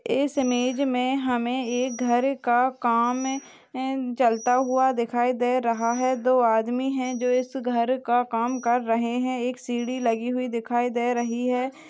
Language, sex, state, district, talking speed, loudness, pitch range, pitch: Hindi, female, Maharashtra, Chandrapur, 160 wpm, -24 LUFS, 240-255 Hz, 250 Hz